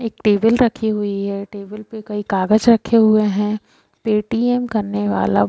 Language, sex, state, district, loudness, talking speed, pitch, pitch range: Hindi, female, Bihar, Saran, -18 LUFS, 175 wpm, 215 Hz, 200-225 Hz